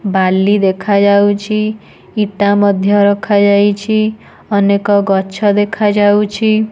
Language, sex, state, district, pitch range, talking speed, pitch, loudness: Odia, female, Odisha, Nuapada, 200-210 Hz, 70 wpm, 205 Hz, -12 LUFS